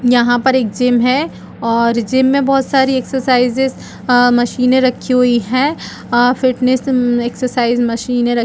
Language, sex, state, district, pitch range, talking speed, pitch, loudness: Hindi, female, Uttar Pradesh, Jalaun, 240-260 Hz, 155 wpm, 250 Hz, -14 LUFS